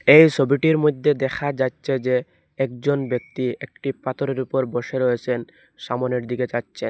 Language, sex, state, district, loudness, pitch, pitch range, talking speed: Bengali, male, Assam, Hailakandi, -22 LUFS, 130 Hz, 125-140 Hz, 140 wpm